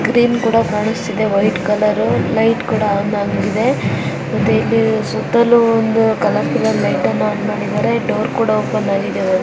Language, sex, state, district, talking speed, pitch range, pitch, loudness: Kannada, female, Karnataka, Dharwad, 145 wpm, 210-230 Hz, 220 Hz, -16 LUFS